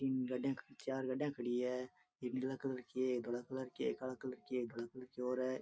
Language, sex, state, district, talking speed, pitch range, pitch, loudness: Rajasthani, male, Rajasthan, Churu, 275 wpm, 125-130 Hz, 130 Hz, -42 LUFS